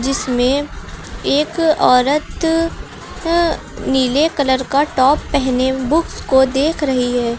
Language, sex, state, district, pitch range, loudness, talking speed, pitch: Hindi, female, Uttar Pradesh, Lucknow, 260-305 Hz, -16 LUFS, 115 wpm, 275 Hz